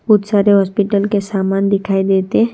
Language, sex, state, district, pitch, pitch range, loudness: Hindi, female, Gujarat, Gandhinagar, 200 Hz, 195-205 Hz, -15 LUFS